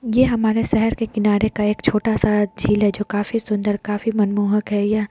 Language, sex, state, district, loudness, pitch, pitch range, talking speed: Hindi, female, Bihar, Lakhisarai, -19 LUFS, 210 Hz, 205-225 Hz, 225 wpm